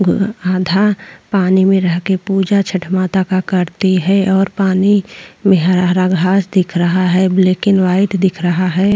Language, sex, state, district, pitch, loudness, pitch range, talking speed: Hindi, female, Uttar Pradesh, Jyotiba Phule Nagar, 190 Hz, -14 LUFS, 185-195 Hz, 165 wpm